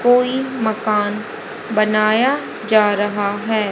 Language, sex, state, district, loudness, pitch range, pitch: Hindi, female, Haryana, Rohtak, -17 LUFS, 210-235 Hz, 215 Hz